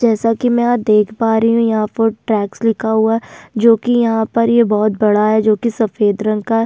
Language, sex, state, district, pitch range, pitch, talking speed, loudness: Hindi, female, Uttarakhand, Tehri Garhwal, 215-230 Hz, 225 Hz, 250 wpm, -14 LUFS